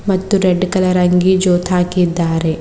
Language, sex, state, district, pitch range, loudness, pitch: Kannada, female, Karnataka, Bidar, 180-185 Hz, -14 LUFS, 180 Hz